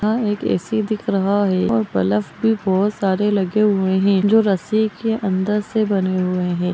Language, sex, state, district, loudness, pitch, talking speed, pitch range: Magahi, female, Bihar, Gaya, -19 LUFS, 200 Hz, 160 wpm, 185-215 Hz